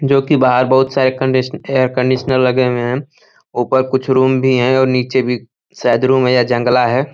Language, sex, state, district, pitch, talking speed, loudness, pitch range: Hindi, male, Uttar Pradesh, Ghazipur, 130 Hz, 210 wpm, -14 LUFS, 125-130 Hz